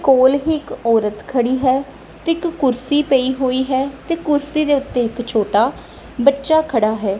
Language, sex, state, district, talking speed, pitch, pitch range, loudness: Punjabi, female, Punjab, Kapurthala, 175 wpm, 265 Hz, 240-290 Hz, -17 LUFS